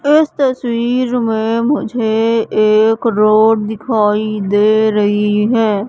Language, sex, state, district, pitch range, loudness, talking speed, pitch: Hindi, female, Madhya Pradesh, Katni, 215-235 Hz, -13 LUFS, 100 wpm, 220 Hz